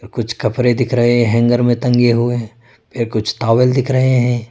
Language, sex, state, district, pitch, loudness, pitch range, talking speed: Hindi, male, Arunachal Pradesh, Lower Dibang Valley, 120 Hz, -15 LUFS, 115-125 Hz, 185 wpm